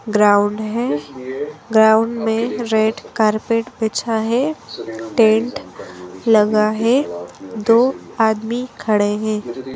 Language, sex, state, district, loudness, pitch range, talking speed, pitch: Hindi, female, Madhya Pradesh, Bhopal, -18 LUFS, 210-230 Hz, 90 wpm, 220 Hz